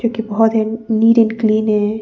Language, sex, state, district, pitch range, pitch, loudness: Hindi, female, Arunachal Pradesh, Papum Pare, 215-225 Hz, 220 Hz, -15 LUFS